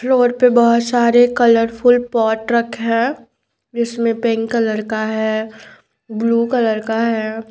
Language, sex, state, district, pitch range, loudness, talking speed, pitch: Hindi, female, Bihar, Patna, 225-240 Hz, -16 LUFS, 135 wpm, 230 Hz